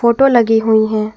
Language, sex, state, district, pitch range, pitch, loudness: Hindi, female, Jharkhand, Garhwa, 220-235 Hz, 225 Hz, -12 LUFS